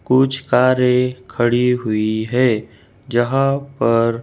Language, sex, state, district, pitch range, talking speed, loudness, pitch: Hindi, male, Madhya Pradesh, Bhopal, 115-130 Hz, 100 wpm, -17 LUFS, 125 Hz